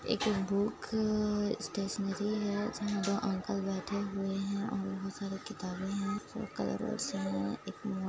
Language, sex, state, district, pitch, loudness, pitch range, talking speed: Hindi, female, Chhattisgarh, Kabirdham, 200 Hz, -35 LUFS, 195-210 Hz, 120 wpm